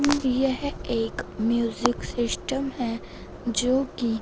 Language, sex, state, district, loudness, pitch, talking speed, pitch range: Hindi, female, Punjab, Fazilka, -26 LUFS, 245 Hz, 100 wpm, 235-270 Hz